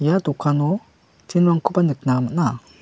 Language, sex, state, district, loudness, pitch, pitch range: Garo, male, Meghalaya, West Garo Hills, -20 LUFS, 155 Hz, 140-175 Hz